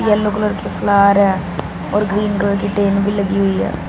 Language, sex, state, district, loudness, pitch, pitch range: Hindi, female, Punjab, Fazilka, -16 LUFS, 200 Hz, 200-205 Hz